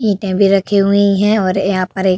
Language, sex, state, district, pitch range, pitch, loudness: Hindi, female, Uttar Pradesh, Hamirpur, 190-200 Hz, 195 Hz, -13 LUFS